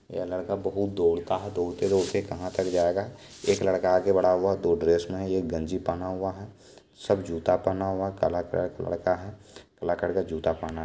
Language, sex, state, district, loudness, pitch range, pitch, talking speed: Maithili, male, Bihar, Supaul, -27 LUFS, 85-95 Hz, 95 Hz, 215 wpm